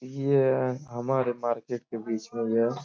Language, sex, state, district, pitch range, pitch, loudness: Hindi, male, Uttar Pradesh, Etah, 115-130 Hz, 120 Hz, -28 LUFS